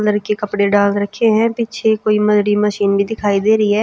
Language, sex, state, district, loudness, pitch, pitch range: Hindi, female, Chhattisgarh, Raipur, -15 LUFS, 210 Hz, 205-220 Hz